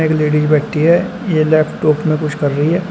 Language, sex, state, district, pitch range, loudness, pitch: Hindi, male, Uttar Pradesh, Shamli, 150-165 Hz, -14 LUFS, 155 Hz